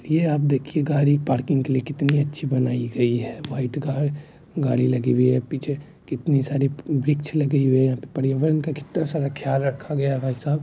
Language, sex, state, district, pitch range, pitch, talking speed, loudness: Hindi, male, Bihar, Supaul, 130-150 Hz, 140 Hz, 180 wpm, -23 LUFS